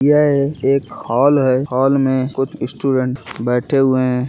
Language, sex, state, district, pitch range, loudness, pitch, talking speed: Hindi, male, Uttar Pradesh, Gorakhpur, 130-140 Hz, -16 LUFS, 135 Hz, 170 wpm